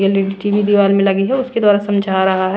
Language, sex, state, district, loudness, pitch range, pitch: Hindi, female, Punjab, Pathankot, -15 LUFS, 195-205 Hz, 200 Hz